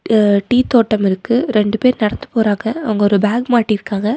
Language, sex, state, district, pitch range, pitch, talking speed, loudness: Tamil, female, Tamil Nadu, Nilgiris, 210-240 Hz, 220 Hz, 170 wpm, -15 LUFS